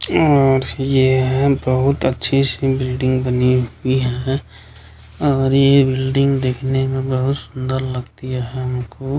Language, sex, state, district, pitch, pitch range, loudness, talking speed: Hindi, male, Bihar, Kishanganj, 130 Hz, 130-135 Hz, -17 LUFS, 115 wpm